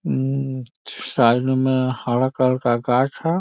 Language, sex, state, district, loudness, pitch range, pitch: Hindi, male, Bihar, Muzaffarpur, -20 LUFS, 125-135 Hz, 130 Hz